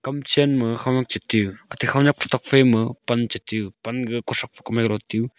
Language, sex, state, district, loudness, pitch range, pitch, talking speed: Wancho, male, Arunachal Pradesh, Longding, -21 LUFS, 115-130 Hz, 120 Hz, 180 wpm